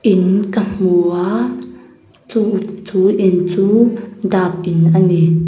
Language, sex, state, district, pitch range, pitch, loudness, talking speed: Mizo, female, Mizoram, Aizawl, 175-205 Hz, 190 Hz, -15 LUFS, 110 wpm